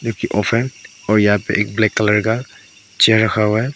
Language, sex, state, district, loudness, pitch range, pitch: Hindi, male, Arunachal Pradesh, Papum Pare, -16 LUFS, 105-115 Hz, 110 Hz